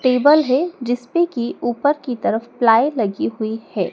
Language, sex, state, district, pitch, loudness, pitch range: Hindi, female, Madhya Pradesh, Dhar, 245 Hz, -18 LUFS, 225-285 Hz